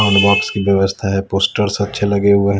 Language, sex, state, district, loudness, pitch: Hindi, male, Bihar, West Champaran, -15 LUFS, 100 Hz